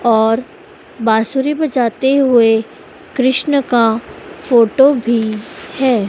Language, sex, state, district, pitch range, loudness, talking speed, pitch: Hindi, female, Madhya Pradesh, Dhar, 225-275 Hz, -14 LUFS, 90 wpm, 245 Hz